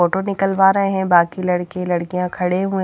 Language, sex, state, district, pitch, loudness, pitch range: Hindi, female, Haryana, Jhajjar, 185 Hz, -18 LUFS, 180-195 Hz